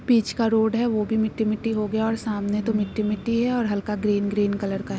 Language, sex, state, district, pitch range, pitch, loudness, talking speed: Hindi, female, Bihar, East Champaran, 210-225 Hz, 215 Hz, -24 LUFS, 275 wpm